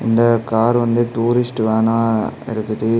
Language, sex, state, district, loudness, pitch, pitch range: Tamil, male, Tamil Nadu, Kanyakumari, -17 LUFS, 115 Hz, 110-120 Hz